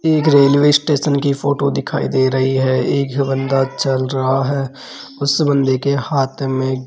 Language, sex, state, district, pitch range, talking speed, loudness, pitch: Hindi, male, Rajasthan, Jaipur, 130-140 Hz, 175 wpm, -16 LUFS, 135 Hz